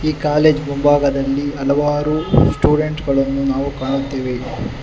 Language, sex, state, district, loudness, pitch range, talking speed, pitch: Kannada, male, Karnataka, Bangalore, -17 LUFS, 135-150 Hz, 100 wpm, 140 Hz